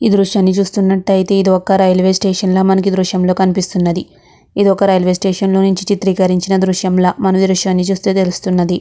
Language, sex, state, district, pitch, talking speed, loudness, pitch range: Telugu, female, Andhra Pradesh, Guntur, 190 Hz, 165 wpm, -13 LUFS, 185-195 Hz